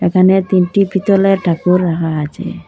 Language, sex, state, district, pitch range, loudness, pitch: Bengali, female, Assam, Hailakandi, 170-195 Hz, -13 LUFS, 185 Hz